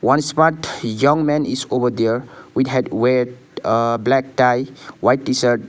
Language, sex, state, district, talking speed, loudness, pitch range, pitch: English, male, Sikkim, Gangtok, 160 wpm, -18 LUFS, 120-135 Hz, 125 Hz